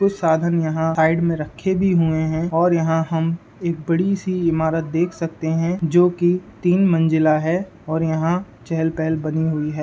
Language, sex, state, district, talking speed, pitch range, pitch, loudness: Hindi, male, Uttar Pradesh, Ghazipur, 175 wpm, 160-175 Hz, 165 Hz, -20 LUFS